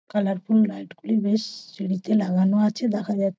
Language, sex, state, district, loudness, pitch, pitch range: Bengali, female, West Bengal, Purulia, -23 LUFS, 205 Hz, 190-215 Hz